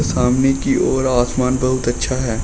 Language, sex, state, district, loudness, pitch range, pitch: Hindi, male, Uttar Pradesh, Shamli, -17 LUFS, 120-130 Hz, 125 Hz